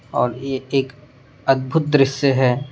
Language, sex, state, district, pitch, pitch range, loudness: Hindi, male, Tripura, West Tripura, 135 Hz, 130-140 Hz, -19 LUFS